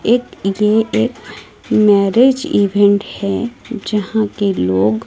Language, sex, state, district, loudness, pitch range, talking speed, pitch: Hindi, female, Odisha, Malkangiri, -15 LUFS, 200-230 Hz, 105 wpm, 205 Hz